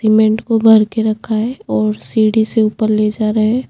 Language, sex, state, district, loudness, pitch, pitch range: Hindi, female, Chhattisgarh, Bastar, -14 LUFS, 220 Hz, 215-220 Hz